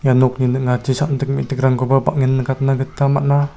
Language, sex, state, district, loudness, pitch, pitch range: Garo, male, Meghalaya, South Garo Hills, -17 LUFS, 135 Hz, 130-140 Hz